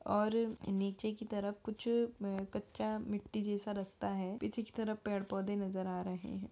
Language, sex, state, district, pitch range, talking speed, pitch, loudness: Hindi, female, Bihar, Begusarai, 195-220 Hz, 185 wpm, 205 Hz, -39 LUFS